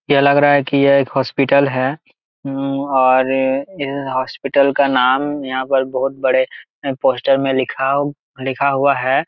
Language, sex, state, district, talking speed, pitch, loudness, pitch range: Hindi, male, Jharkhand, Jamtara, 155 wpm, 135 Hz, -16 LUFS, 130-140 Hz